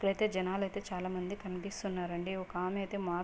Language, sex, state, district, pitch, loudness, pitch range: Telugu, female, Andhra Pradesh, Guntur, 190 Hz, -37 LUFS, 180-195 Hz